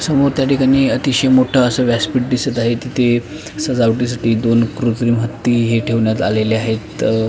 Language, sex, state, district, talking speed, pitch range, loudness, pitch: Marathi, male, Maharashtra, Pune, 155 wpm, 115-130 Hz, -15 LUFS, 120 Hz